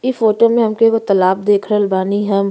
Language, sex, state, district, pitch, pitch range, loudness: Bhojpuri, female, Uttar Pradesh, Gorakhpur, 205 Hz, 200-225 Hz, -14 LUFS